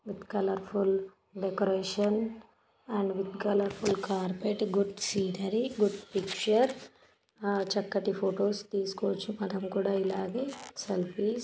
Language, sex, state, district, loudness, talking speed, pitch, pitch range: Telugu, female, Telangana, Nalgonda, -31 LUFS, 110 wpm, 200 Hz, 195-210 Hz